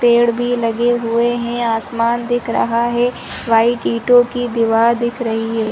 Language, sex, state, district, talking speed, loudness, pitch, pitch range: Hindi, female, Chhattisgarh, Rajnandgaon, 170 wpm, -16 LUFS, 235 Hz, 230-240 Hz